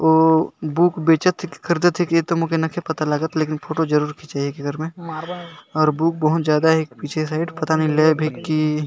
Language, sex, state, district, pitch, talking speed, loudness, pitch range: Sadri, male, Chhattisgarh, Jashpur, 160 Hz, 210 wpm, -20 LUFS, 155-165 Hz